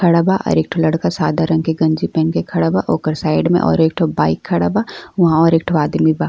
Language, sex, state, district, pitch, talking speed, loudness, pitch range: Bhojpuri, female, Uttar Pradesh, Ghazipur, 160 Hz, 265 wpm, -16 LUFS, 150-165 Hz